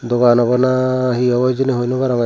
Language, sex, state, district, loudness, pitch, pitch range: Chakma, male, Tripura, Dhalai, -15 LUFS, 125 Hz, 120-130 Hz